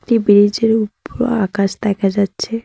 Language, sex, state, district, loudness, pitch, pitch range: Bengali, female, West Bengal, Cooch Behar, -16 LUFS, 210 Hz, 200-225 Hz